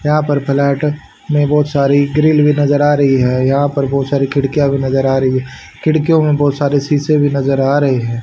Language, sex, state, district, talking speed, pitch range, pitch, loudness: Hindi, male, Haryana, Rohtak, 225 wpm, 135-150 Hz, 140 Hz, -13 LUFS